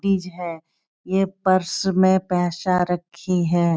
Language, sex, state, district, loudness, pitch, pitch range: Hindi, female, Bihar, Supaul, -21 LUFS, 180 Hz, 175-190 Hz